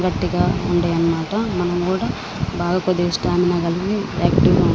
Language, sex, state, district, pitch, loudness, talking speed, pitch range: Telugu, female, Andhra Pradesh, Srikakulam, 175 Hz, -19 LUFS, 140 wpm, 170-185 Hz